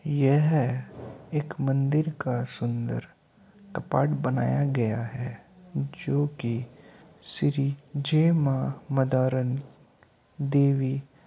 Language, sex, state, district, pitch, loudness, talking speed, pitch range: Hindi, male, Uttar Pradesh, Hamirpur, 140 Hz, -27 LUFS, 90 wpm, 130-150 Hz